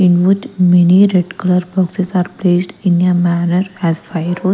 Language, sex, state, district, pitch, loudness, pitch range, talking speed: English, female, Punjab, Kapurthala, 180 Hz, -14 LUFS, 175-185 Hz, 185 wpm